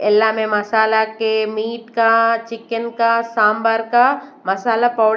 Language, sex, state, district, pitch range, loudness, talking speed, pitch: Hindi, female, Bihar, West Champaran, 220-230 Hz, -17 LUFS, 140 wpm, 225 Hz